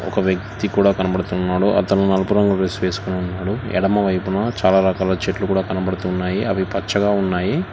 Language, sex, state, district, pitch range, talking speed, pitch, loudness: Telugu, male, Telangana, Hyderabad, 95-100 Hz, 145 wpm, 95 Hz, -19 LUFS